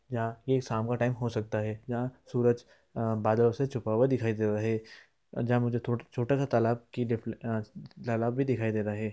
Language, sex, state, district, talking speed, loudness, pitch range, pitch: Hindi, male, Bihar, East Champaran, 215 wpm, -30 LUFS, 110-120 Hz, 120 Hz